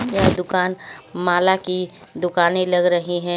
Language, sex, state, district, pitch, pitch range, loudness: Hindi, female, Haryana, Charkhi Dadri, 180 Hz, 175-185 Hz, -19 LUFS